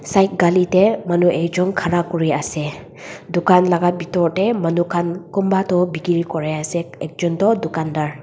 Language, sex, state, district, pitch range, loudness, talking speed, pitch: Nagamese, female, Nagaland, Dimapur, 165-180 Hz, -18 LUFS, 180 wpm, 175 Hz